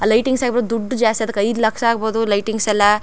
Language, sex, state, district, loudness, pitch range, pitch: Kannada, female, Karnataka, Chamarajanagar, -18 LUFS, 210-230 Hz, 225 Hz